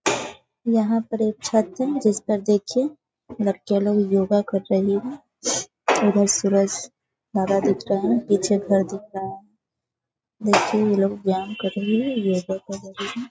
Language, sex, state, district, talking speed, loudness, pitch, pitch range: Hindi, female, Bihar, Sitamarhi, 160 wpm, -22 LUFS, 205 Hz, 195-220 Hz